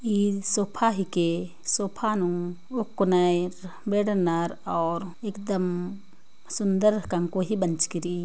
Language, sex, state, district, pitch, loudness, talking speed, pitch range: Sadri, female, Chhattisgarh, Jashpur, 185 Hz, -26 LUFS, 125 wpm, 175-205 Hz